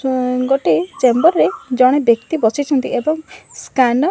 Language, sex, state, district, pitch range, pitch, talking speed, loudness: Odia, female, Odisha, Malkangiri, 250-310 Hz, 265 Hz, 145 wpm, -16 LUFS